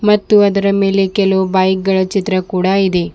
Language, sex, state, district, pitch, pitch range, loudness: Kannada, female, Karnataka, Bidar, 195 Hz, 190-200 Hz, -13 LUFS